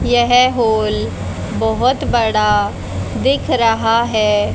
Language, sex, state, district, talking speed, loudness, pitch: Hindi, female, Haryana, Rohtak, 90 wpm, -15 LUFS, 220 Hz